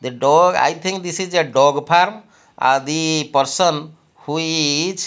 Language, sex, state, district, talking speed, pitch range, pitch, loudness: English, male, Odisha, Malkangiri, 175 wpm, 145-180 Hz, 160 Hz, -17 LUFS